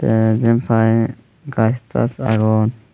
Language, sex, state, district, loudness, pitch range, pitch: Chakma, male, Tripura, Unakoti, -17 LUFS, 110-120 Hz, 115 Hz